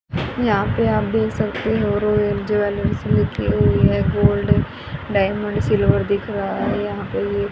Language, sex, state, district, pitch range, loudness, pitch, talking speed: Hindi, female, Haryana, Rohtak, 130-205 Hz, -19 LUFS, 205 Hz, 160 wpm